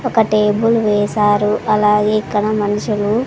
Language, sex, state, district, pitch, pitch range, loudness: Telugu, female, Andhra Pradesh, Sri Satya Sai, 210 Hz, 210-215 Hz, -15 LUFS